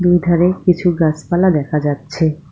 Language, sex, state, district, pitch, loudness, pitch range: Bengali, female, West Bengal, Cooch Behar, 165 Hz, -15 LUFS, 155-175 Hz